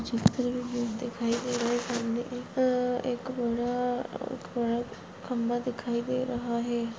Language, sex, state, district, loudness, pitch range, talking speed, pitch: Hindi, female, Goa, North and South Goa, -30 LUFS, 235-250 Hz, 70 wpm, 240 Hz